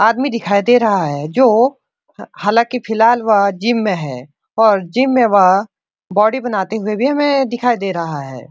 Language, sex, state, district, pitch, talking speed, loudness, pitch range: Hindi, male, Bihar, Supaul, 220 Hz, 175 wpm, -15 LUFS, 195-245 Hz